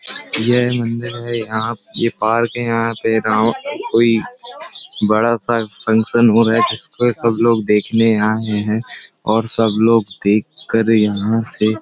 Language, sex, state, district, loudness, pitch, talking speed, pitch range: Hindi, male, Uttar Pradesh, Hamirpur, -16 LUFS, 115 Hz, 165 wpm, 110-115 Hz